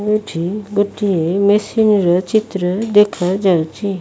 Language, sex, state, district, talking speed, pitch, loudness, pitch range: Odia, female, Odisha, Malkangiri, 90 wpm, 200 Hz, -16 LUFS, 180-210 Hz